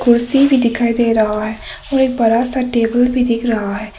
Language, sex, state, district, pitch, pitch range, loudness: Hindi, female, Arunachal Pradesh, Papum Pare, 235 Hz, 225-250 Hz, -15 LUFS